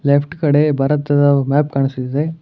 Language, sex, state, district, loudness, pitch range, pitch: Kannada, male, Karnataka, Bangalore, -16 LUFS, 140-150 Hz, 145 Hz